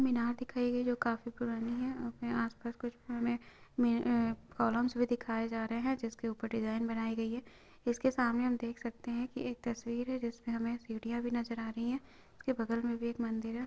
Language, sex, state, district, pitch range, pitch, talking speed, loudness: Hindi, female, Chhattisgarh, Raigarh, 230-245 Hz, 235 Hz, 210 wpm, -36 LUFS